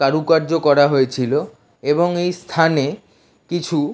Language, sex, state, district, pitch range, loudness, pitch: Bengali, male, West Bengal, Dakshin Dinajpur, 145-170 Hz, -18 LUFS, 155 Hz